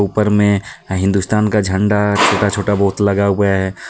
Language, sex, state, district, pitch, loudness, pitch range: Hindi, male, Jharkhand, Deoghar, 100 Hz, -15 LUFS, 100-105 Hz